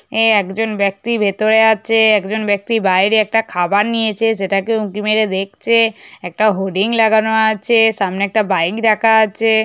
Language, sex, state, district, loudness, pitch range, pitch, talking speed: Bengali, female, West Bengal, North 24 Parganas, -14 LUFS, 200-225 Hz, 220 Hz, 155 wpm